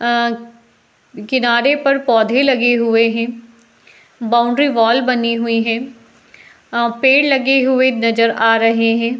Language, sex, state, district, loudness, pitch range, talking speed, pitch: Hindi, female, Uttar Pradesh, Jalaun, -14 LUFS, 230-260 Hz, 135 wpm, 235 Hz